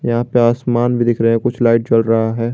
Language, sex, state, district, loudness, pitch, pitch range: Hindi, male, Jharkhand, Garhwa, -15 LUFS, 120 Hz, 115-120 Hz